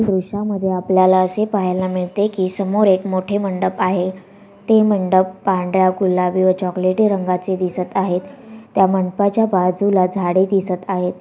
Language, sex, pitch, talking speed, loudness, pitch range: Marathi, female, 190 Hz, 140 wpm, -17 LUFS, 185-200 Hz